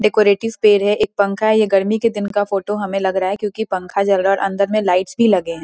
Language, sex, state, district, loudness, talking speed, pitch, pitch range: Hindi, female, Bihar, Muzaffarpur, -17 LUFS, 275 wpm, 200 Hz, 195-215 Hz